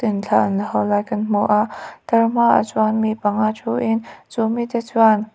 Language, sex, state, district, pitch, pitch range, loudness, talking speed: Mizo, female, Mizoram, Aizawl, 220 Hz, 210-230 Hz, -19 LUFS, 200 wpm